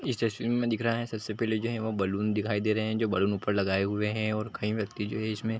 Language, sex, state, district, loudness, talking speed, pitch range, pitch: Hindi, male, Chhattisgarh, Bilaspur, -30 LUFS, 310 wpm, 105-115 Hz, 110 Hz